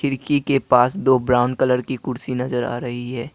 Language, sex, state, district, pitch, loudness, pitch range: Hindi, male, Assam, Kamrup Metropolitan, 125 Hz, -20 LUFS, 125-130 Hz